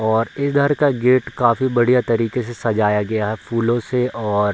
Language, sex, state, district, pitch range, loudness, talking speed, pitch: Hindi, male, Bihar, Bhagalpur, 110-125 Hz, -18 LUFS, 200 wpm, 120 Hz